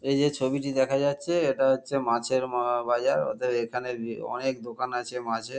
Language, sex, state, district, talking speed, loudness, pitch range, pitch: Bengali, male, West Bengal, Kolkata, 170 wpm, -27 LUFS, 120-135 Hz, 130 Hz